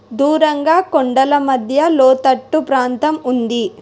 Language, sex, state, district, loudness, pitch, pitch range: Telugu, female, Telangana, Hyderabad, -14 LUFS, 275 Hz, 255-305 Hz